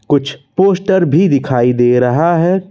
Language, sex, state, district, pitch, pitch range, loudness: Hindi, male, Madhya Pradesh, Bhopal, 150 Hz, 125-185 Hz, -12 LUFS